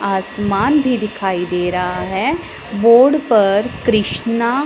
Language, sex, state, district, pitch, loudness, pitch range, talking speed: Hindi, female, Punjab, Pathankot, 215 Hz, -16 LUFS, 195-240 Hz, 115 wpm